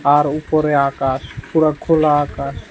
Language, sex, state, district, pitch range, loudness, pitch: Bengali, male, Tripura, West Tripura, 135-155 Hz, -17 LUFS, 145 Hz